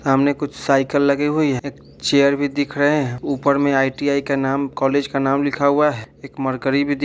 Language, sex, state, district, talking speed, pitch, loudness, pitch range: Hindi, male, Bihar, Vaishali, 240 wpm, 140 Hz, -19 LUFS, 135-145 Hz